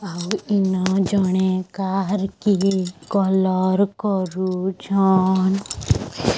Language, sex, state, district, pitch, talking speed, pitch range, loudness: Odia, male, Odisha, Sambalpur, 190 Hz, 65 wpm, 185-195 Hz, -20 LUFS